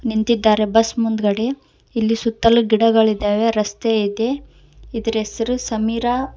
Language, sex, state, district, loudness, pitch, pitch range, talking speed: Kannada, female, Karnataka, Koppal, -18 LUFS, 225 Hz, 220-235 Hz, 105 wpm